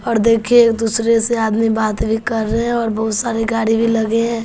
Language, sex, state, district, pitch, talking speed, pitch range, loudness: Hindi, female, Bihar, West Champaran, 225 Hz, 240 wpm, 220-230 Hz, -16 LUFS